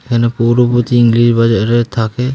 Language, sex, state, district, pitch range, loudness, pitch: Bengali, male, West Bengal, Malda, 115-120 Hz, -12 LUFS, 120 Hz